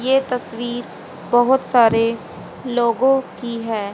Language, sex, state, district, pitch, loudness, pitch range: Hindi, female, Haryana, Jhajjar, 240 Hz, -18 LUFS, 230-255 Hz